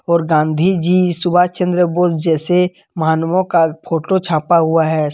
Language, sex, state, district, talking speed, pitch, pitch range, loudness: Hindi, male, Jharkhand, Deoghar, 150 wpm, 170 Hz, 160-180 Hz, -15 LUFS